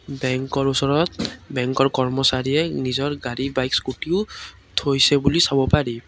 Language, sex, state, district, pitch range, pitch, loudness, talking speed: Assamese, male, Assam, Kamrup Metropolitan, 130-140 Hz, 135 Hz, -21 LUFS, 120 wpm